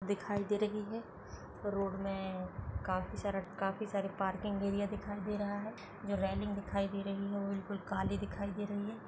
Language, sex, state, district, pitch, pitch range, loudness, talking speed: Hindi, female, Chhattisgarh, Jashpur, 200 Hz, 195-205 Hz, -38 LUFS, 170 wpm